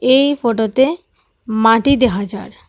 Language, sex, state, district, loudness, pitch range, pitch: Bengali, female, Assam, Hailakandi, -15 LUFS, 220-270 Hz, 240 Hz